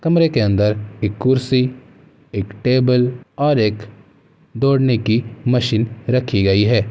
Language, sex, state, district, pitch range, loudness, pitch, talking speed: Hindi, male, Uttar Pradesh, Muzaffarnagar, 105-130 Hz, -17 LUFS, 125 Hz, 130 wpm